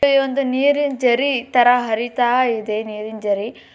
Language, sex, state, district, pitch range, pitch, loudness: Kannada, male, Karnataka, Bijapur, 220-270 Hz, 245 Hz, -18 LUFS